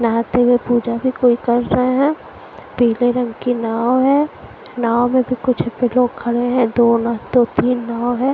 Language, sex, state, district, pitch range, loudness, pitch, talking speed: Hindi, female, Punjab, Fazilka, 235-250 Hz, -17 LUFS, 245 Hz, 195 wpm